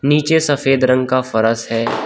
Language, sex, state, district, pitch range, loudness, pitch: Hindi, male, Uttar Pradesh, Shamli, 115-145 Hz, -15 LUFS, 130 Hz